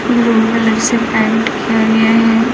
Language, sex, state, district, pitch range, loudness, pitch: Hindi, female, Bihar, Sitamarhi, 225-230 Hz, -12 LUFS, 225 Hz